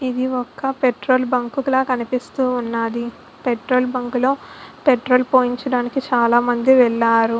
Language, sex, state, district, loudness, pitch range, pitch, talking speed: Telugu, female, Andhra Pradesh, Visakhapatnam, -18 LUFS, 240-255 Hz, 250 Hz, 115 wpm